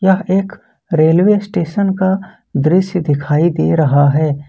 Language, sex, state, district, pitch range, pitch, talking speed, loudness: Hindi, male, Jharkhand, Ranchi, 155-190 Hz, 180 Hz, 135 wpm, -14 LUFS